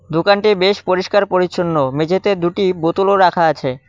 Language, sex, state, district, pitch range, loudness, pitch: Bengali, male, West Bengal, Cooch Behar, 165-195 Hz, -15 LUFS, 185 Hz